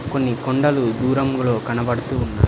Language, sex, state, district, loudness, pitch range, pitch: Telugu, male, Telangana, Hyderabad, -20 LUFS, 120-135 Hz, 125 Hz